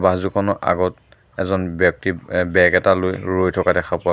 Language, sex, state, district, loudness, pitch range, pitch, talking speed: Assamese, male, Assam, Sonitpur, -19 LUFS, 90-95 Hz, 95 Hz, 175 wpm